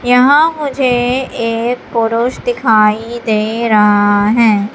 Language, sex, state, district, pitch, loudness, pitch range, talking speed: Hindi, female, Madhya Pradesh, Katni, 235 Hz, -12 LUFS, 215-250 Hz, 100 wpm